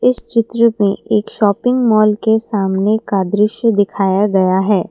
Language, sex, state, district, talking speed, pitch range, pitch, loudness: Hindi, female, Assam, Kamrup Metropolitan, 160 wpm, 200-225 Hz, 210 Hz, -14 LUFS